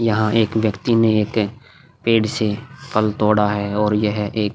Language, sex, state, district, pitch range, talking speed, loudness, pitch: Hindi, male, Chhattisgarh, Korba, 105-115 Hz, 170 wpm, -19 LUFS, 110 Hz